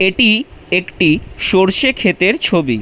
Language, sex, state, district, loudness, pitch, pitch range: Bengali, male, West Bengal, Jhargram, -14 LUFS, 190 Hz, 180-220 Hz